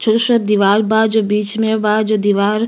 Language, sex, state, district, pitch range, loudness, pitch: Bhojpuri, female, Uttar Pradesh, Gorakhpur, 210-220 Hz, -14 LUFS, 215 Hz